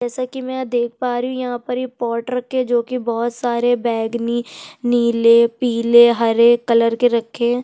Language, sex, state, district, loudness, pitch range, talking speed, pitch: Hindi, female, Chhattisgarh, Sukma, -17 LUFS, 235-250 Hz, 195 wpm, 240 Hz